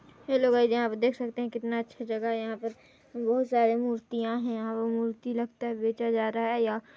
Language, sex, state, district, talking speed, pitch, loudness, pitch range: Hindi, female, Chhattisgarh, Balrampur, 205 wpm, 230 Hz, -29 LUFS, 225-240 Hz